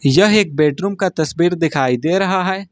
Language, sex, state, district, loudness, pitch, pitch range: Hindi, male, Uttar Pradesh, Lucknow, -16 LUFS, 175 Hz, 155-190 Hz